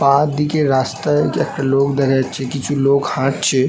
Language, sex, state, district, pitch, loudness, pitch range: Bengali, male, West Bengal, North 24 Parganas, 140 Hz, -17 LUFS, 135-145 Hz